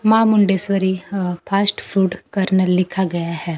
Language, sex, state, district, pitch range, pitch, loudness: Hindi, female, Bihar, Kaimur, 180-200 Hz, 190 Hz, -18 LUFS